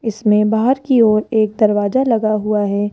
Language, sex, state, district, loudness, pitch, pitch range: Hindi, female, Rajasthan, Jaipur, -15 LUFS, 215 Hz, 210-230 Hz